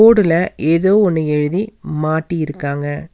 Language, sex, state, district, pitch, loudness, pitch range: Tamil, female, Tamil Nadu, Nilgiris, 160 Hz, -16 LUFS, 150-190 Hz